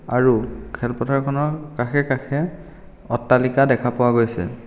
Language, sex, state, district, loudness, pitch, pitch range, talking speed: Assamese, male, Assam, Kamrup Metropolitan, -20 LUFS, 130 Hz, 120-145 Hz, 105 wpm